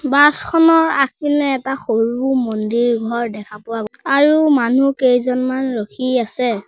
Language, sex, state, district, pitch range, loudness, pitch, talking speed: Assamese, female, Assam, Sonitpur, 230-275 Hz, -16 LUFS, 255 Hz, 115 wpm